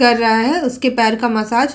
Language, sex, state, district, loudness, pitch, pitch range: Hindi, female, Uttar Pradesh, Hamirpur, -15 LUFS, 240 Hz, 225-250 Hz